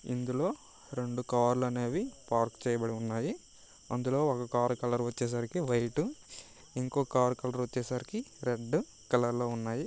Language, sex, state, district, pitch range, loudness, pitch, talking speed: Telugu, male, Andhra Pradesh, Guntur, 120-130 Hz, -33 LUFS, 125 Hz, 150 wpm